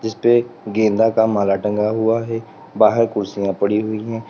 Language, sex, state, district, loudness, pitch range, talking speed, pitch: Hindi, male, Uttar Pradesh, Lalitpur, -18 LUFS, 105-115 Hz, 180 wpm, 110 Hz